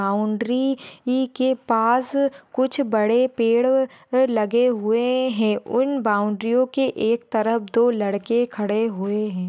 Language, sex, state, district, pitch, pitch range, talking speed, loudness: Hindi, female, Maharashtra, Aurangabad, 235 Hz, 215-255 Hz, 135 wpm, -21 LUFS